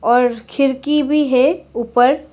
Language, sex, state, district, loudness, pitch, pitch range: Hindi, female, Arunachal Pradesh, Lower Dibang Valley, -16 LUFS, 265 Hz, 245-290 Hz